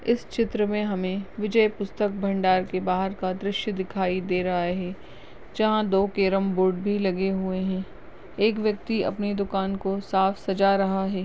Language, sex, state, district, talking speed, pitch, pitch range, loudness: Hindi, female, Uttarakhand, Uttarkashi, 170 wpm, 195 Hz, 190-205 Hz, -25 LUFS